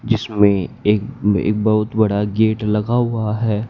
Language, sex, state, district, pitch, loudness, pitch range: Hindi, male, Haryana, Jhajjar, 105 Hz, -18 LUFS, 105-110 Hz